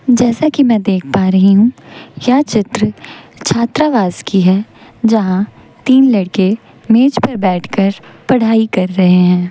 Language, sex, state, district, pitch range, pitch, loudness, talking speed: Hindi, female, Chhattisgarh, Raipur, 190-240 Hz, 210 Hz, -12 LUFS, 140 wpm